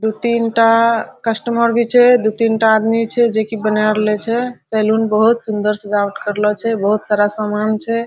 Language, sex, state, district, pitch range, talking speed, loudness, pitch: Hindi, female, Bihar, Araria, 215-230 Hz, 185 wpm, -15 LUFS, 220 Hz